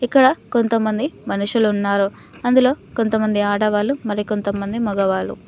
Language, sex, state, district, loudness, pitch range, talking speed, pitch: Telugu, female, Telangana, Mahabubabad, -19 LUFS, 205-240 Hz, 110 wpm, 215 Hz